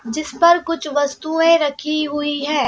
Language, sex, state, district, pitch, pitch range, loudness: Hindi, female, Madhya Pradesh, Bhopal, 300 Hz, 290-325 Hz, -18 LUFS